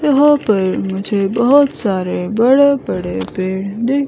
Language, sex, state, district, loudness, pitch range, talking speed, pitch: Hindi, female, Himachal Pradesh, Shimla, -15 LUFS, 190-280 Hz, 135 wpm, 210 Hz